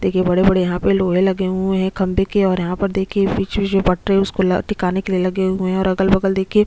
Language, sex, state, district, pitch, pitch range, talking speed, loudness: Hindi, female, Chhattisgarh, Sukma, 190 Hz, 185-195 Hz, 250 wpm, -18 LUFS